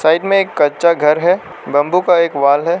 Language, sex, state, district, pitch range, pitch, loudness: Hindi, male, Arunachal Pradesh, Lower Dibang Valley, 150-180 Hz, 170 Hz, -14 LUFS